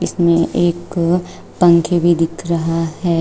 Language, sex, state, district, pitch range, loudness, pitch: Hindi, female, Uttar Pradesh, Shamli, 165-175 Hz, -16 LUFS, 170 Hz